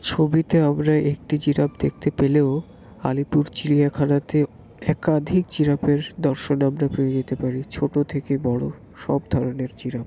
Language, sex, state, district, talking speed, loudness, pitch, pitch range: Bengali, male, West Bengal, Kolkata, 120 wpm, -22 LUFS, 145 Hz, 130-150 Hz